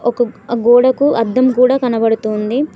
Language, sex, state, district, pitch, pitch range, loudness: Telugu, female, Telangana, Mahabubabad, 240 Hz, 225-255 Hz, -14 LUFS